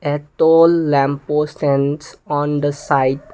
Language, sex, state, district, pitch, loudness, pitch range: English, male, Assam, Kamrup Metropolitan, 145 Hz, -16 LUFS, 140-150 Hz